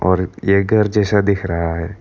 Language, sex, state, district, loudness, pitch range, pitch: Hindi, male, Arunachal Pradesh, Lower Dibang Valley, -17 LUFS, 90-105 Hz, 100 Hz